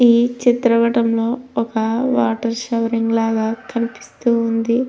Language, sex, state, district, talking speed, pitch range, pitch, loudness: Telugu, female, Andhra Pradesh, Anantapur, 100 wpm, 230-240 Hz, 230 Hz, -18 LUFS